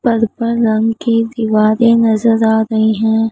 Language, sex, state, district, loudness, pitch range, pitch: Hindi, female, Maharashtra, Mumbai Suburban, -13 LUFS, 220-230 Hz, 225 Hz